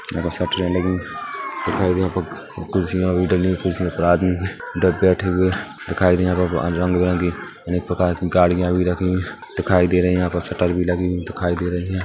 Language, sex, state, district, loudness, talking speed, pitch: Hindi, male, Chhattisgarh, Kabirdham, -20 LUFS, 195 wpm, 90 Hz